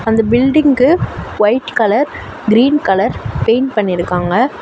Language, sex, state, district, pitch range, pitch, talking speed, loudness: Tamil, female, Tamil Nadu, Chennai, 210-265 Hz, 235 Hz, 105 wpm, -13 LUFS